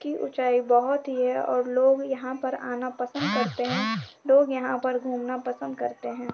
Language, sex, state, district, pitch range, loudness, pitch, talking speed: Hindi, female, Uttar Pradesh, Etah, 245-265 Hz, -26 LUFS, 255 Hz, 190 wpm